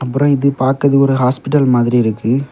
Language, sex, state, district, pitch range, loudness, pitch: Tamil, male, Tamil Nadu, Kanyakumari, 125-140 Hz, -14 LUFS, 135 Hz